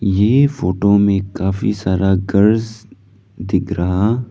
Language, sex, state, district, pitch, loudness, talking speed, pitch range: Hindi, male, Arunachal Pradesh, Lower Dibang Valley, 100 Hz, -16 LUFS, 110 wpm, 95-110 Hz